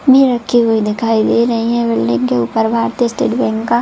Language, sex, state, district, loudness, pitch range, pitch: Hindi, female, Chhattisgarh, Bilaspur, -14 LUFS, 220-235 Hz, 230 Hz